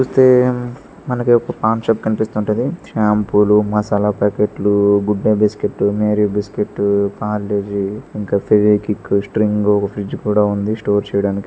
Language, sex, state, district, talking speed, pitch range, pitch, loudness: Telugu, male, Andhra Pradesh, Srikakulam, 120 wpm, 100-110 Hz, 105 Hz, -16 LUFS